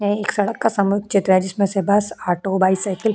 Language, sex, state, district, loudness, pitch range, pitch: Hindi, female, Uttar Pradesh, Jyotiba Phule Nagar, -19 LUFS, 190-205 Hz, 200 Hz